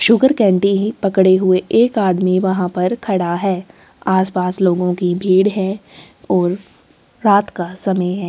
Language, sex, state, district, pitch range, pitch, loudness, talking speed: Hindi, female, Chhattisgarh, Sukma, 180-200 Hz, 190 Hz, -16 LUFS, 160 wpm